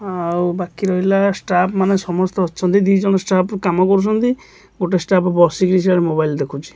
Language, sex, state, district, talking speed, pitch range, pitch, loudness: Odia, male, Odisha, Khordha, 160 wpm, 175-195 Hz, 185 Hz, -16 LUFS